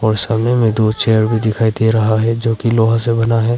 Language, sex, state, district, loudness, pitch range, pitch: Hindi, male, Arunachal Pradesh, Longding, -14 LUFS, 110-115 Hz, 115 Hz